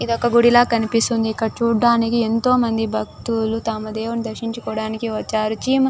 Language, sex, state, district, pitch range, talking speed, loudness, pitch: Telugu, female, Andhra Pradesh, Chittoor, 220-235 Hz, 140 wpm, -19 LUFS, 230 Hz